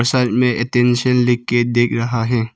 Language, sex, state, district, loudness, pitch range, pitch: Hindi, male, Arunachal Pradesh, Papum Pare, -16 LUFS, 120-125 Hz, 120 Hz